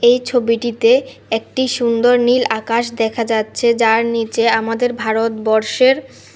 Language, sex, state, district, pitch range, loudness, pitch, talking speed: Bengali, female, Tripura, West Tripura, 225-245 Hz, -16 LUFS, 230 Hz, 115 wpm